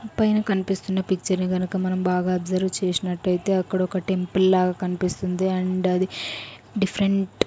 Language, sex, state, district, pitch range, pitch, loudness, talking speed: Telugu, female, Andhra Pradesh, Sri Satya Sai, 185-190 Hz, 185 Hz, -23 LUFS, 135 wpm